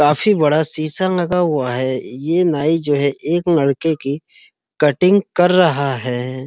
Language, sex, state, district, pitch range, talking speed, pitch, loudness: Hindi, male, Uttar Pradesh, Muzaffarnagar, 140-175 Hz, 160 wpm, 155 Hz, -16 LUFS